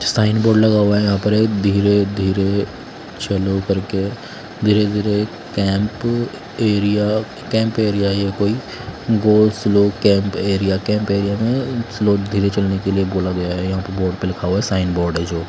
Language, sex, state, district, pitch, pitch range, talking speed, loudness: Hindi, male, Bihar, West Champaran, 100 Hz, 95-105 Hz, 180 wpm, -18 LUFS